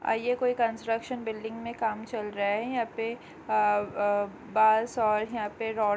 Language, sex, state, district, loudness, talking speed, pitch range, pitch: Hindi, female, Chhattisgarh, Korba, -29 LUFS, 190 wpm, 210-235 Hz, 225 Hz